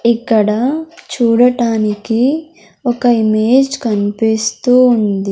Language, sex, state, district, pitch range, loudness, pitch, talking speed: Telugu, female, Andhra Pradesh, Sri Satya Sai, 220-250 Hz, -13 LUFS, 235 Hz, 70 wpm